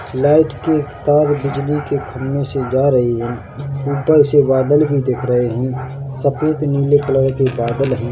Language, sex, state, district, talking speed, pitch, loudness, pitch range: Hindi, male, Chhattisgarh, Bilaspur, 170 wpm, 140 Hz, -16 LUFS, 130-145 Hz